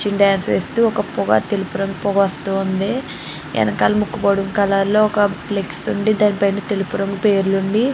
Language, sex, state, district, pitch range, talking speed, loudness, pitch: Telugu, female, Andhra Pradesh, Srikakulam, 195-205 Hz, 165 wpm, -18 LUFS, 200 Hz